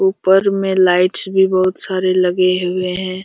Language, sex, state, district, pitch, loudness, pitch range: Hindi, male, Jharkhand, Jamtara, 185 Hz, -14 LUFS, 185-190 Hz